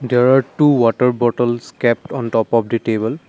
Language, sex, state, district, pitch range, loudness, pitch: English, male, Assam, Kamrup Metropolitan, 115-130 Hz, -16 LUFS, 120 Hz